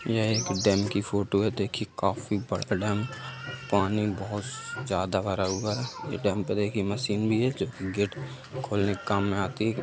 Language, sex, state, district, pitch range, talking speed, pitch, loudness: Hindi, male, Uttar Pradesh, Jalaun, 100-115 Hz, 200 wpm, 105 Hz, -28 LUFS